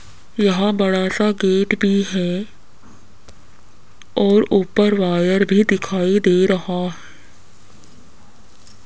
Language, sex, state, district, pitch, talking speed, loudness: Hindi, female, Rajasthan, Jaipur, 180 Hz, 95 wpm, -17 LUFS